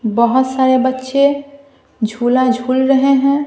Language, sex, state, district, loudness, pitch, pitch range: Hindi, female, Bihar, Patna, -14 LUFS, 260 Hz, 255-275 Hz